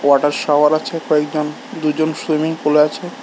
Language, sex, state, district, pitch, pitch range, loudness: Bengali, male, Tripura, West Tripura, 150 Hz, 150-155 Hz, -17 LUFS